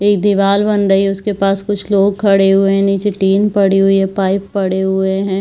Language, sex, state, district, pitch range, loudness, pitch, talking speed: Hindi, female, Bihar, Saharsa, 195-205 Hz, -13 LUFS, 195 Hz, 235 wpm